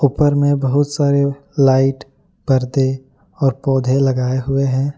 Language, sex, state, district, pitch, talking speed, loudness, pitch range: Hindi, male, Jharkhand, Ranchi, 135 Hz, 130 wpm, -16 LUFS, 130-140 Hz